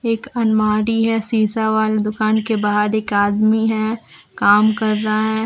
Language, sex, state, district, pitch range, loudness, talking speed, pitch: Hindi, female, Jharkhand, Deoghar, 215-220 Hz, -17 LUFS, 165 wpm, 215 Hz